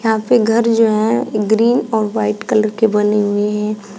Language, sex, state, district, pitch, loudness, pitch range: Hindi, female, Uttar Pradesh, Shamli, 215 Hz, -15 LUFS, 210-225 Hz